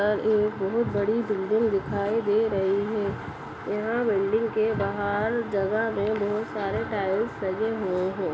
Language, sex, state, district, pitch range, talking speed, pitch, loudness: Kumaoni, female, Uttarakhand, Uttarkashi, 200-220 Hz, 150 wpm, 210 Hz, -26 LUFS